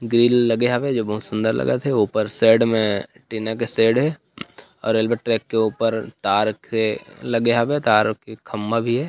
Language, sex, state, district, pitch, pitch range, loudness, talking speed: Chhattisgarhi, male, Chhattisgarh, Rajnandgaon, 115 Hz, 110-120 Hz, -20 LUFS, 185 wpm